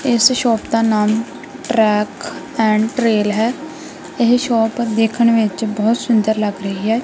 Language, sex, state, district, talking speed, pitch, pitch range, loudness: Punjabi, female, Punjab, Kapurthala, 145 wpm, 225 Hz, 215-240 Hz, -16 LUFS